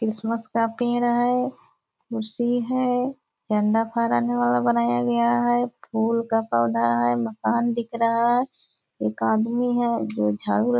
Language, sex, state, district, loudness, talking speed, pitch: Hindi, female, Bihar, Purnia, -23 LUFS, 145 wpm, 225 Hz